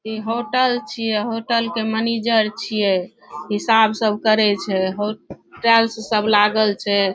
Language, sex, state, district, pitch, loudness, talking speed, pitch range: Maithili, female, Bihar, Saharsa, 220 Hz, -19 LUFS, 135 wpm, 210-230 Hz